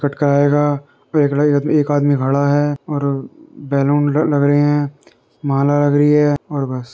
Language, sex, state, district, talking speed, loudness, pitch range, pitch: Hindi, male, Uttar Pradesh, Muzaffarnagar, 145 wpm, -16 LUFS, 140-145 Hz, 145 Hz